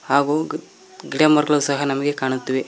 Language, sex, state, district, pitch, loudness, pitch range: Kannada, male, Karnataka, Koppal, 140 Hz, -19 LUFS, 135-150 Hz